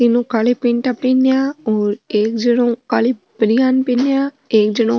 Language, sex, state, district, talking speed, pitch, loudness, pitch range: Marwari, female, Rajasthan, Nagaur, 155 wpm, 240 Hz, -16 LUFS, 225-260 Hz